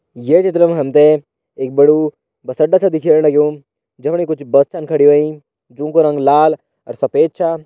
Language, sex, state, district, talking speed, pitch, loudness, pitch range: Hindi, male, Uttarakhand, Tehri Garhwal, 195 wpm, 150 Hz, -13 LUFS, 145-160 Hz